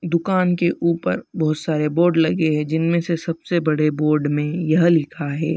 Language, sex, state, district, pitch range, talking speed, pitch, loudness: Hindi, male, Bihar, Begusarai, 155-170 Hz, 185 wpm, 160 Hz, -20 LUFS